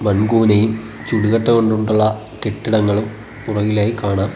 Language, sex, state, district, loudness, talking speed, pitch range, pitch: Malayalam, male, Kerala, Kollam, -17 LUFS, 85 wpm, 105-110 Hz, 110 Hz